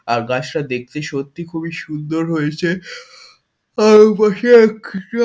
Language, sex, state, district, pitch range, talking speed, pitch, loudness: Bengali, male, West Bengal, Kolkata, 150-215 Hz, 115 wpm, 170 Hz, -15 LUFS